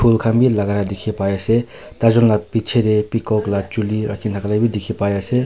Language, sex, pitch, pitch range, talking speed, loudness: Nagamese, male, 110 Hz, 100-115 Hz, 220 wpm, -18 LUFS